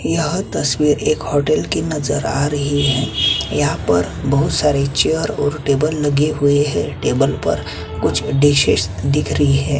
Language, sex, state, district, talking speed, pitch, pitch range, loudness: Hindi, male, Chhattisgarh, Kabirdham, 160 wpm, 145 Hz, 140-150 Hz, -17 LUFS